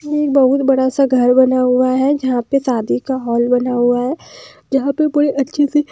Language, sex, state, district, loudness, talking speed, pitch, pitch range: Hindi, female, Bihar, Patna, -15 LUFS, 225 wpm, 260 Hz, 250-280 Hz